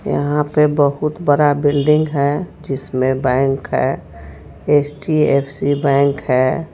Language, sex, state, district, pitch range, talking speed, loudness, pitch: Hindi, female, Jharkhand, Ranchi, 135-150 Hz, 105 wpm, -16 LUFS, 145 Hz